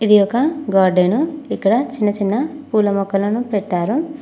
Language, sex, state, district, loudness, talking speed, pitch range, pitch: Telugu, female, Telangana, Mahabubabad, -17 LUFS, 130 wpm, 200-285 Hz, 215 Hz